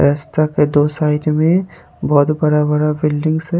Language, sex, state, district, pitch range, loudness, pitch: Hindi, male, Haryana, Charkhi Dadri, 150-155 Hz, -15 LUFS, 150 Hz